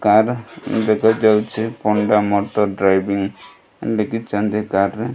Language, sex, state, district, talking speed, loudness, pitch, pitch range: Odia, male, Odisha, Malkangiri, 105 wpm, -18 LUFS, 105 Hz, 100-110 Hz